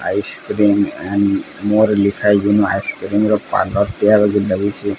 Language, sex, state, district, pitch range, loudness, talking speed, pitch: Odia, male, Odisha, Sambalpur, 100-105 Hz, -16 LUFS, 130 wpm, 100 Hz